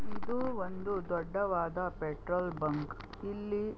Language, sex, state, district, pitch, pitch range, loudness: Kannada, female, Karnataka, Belgaum, 185 Hz, 170-205 Hz, -36 LUFS